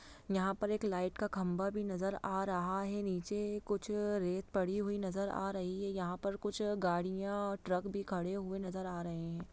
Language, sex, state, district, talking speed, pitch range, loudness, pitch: Hindi, female, Bihar, Sitamarhi, 210 wpm, 185-205 Hz, -38 LUFS, 195 Hz